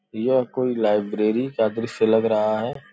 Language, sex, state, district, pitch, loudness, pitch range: Hindi, male, Uttar Pradesh, Gorakhpur, 110 Hz, -22 LUFS, 110-120 Hz